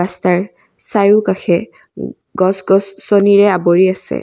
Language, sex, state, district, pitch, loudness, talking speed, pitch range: Assamese, female, Assam, Kamrup Metropolitan, 190 Hz, -13 LUFS, 85 wpm, 185-200 Hz